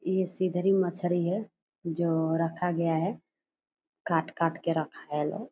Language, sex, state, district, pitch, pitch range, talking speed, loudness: Hindi, female, Bihar, Purnia, 175 Hz, 165-195 Hz, 130 wpm, -29 LUFS